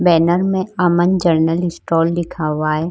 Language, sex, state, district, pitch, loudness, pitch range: Hindi, female, Maharashtra, Chandrapur, 170 Hz, -16 LUFS, 165-180 Hz